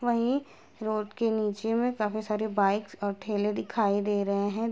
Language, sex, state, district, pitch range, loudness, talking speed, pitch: Hindi, female, Uttar Pradesh, Gorakhpur, 205-225 Hz, -29 LUFS, 180 wpm, 215 Hz